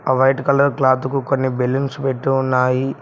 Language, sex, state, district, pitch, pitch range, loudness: Telugu, male, Telangana, Mahabubabad, 135 Hz, 130-135 Hz, -18 LUFS